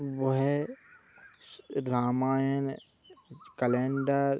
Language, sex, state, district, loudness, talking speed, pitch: Hindi, male, Uttar Pradesh, Budaun, -30 LUFS, 70 wpm, 140 Hz